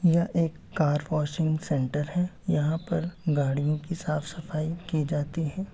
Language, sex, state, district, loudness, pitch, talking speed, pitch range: Hindi, male, Uttar Pradesh, Etah, -28 LUFS, 160 Hz, 165 wpm, 150-170 Hz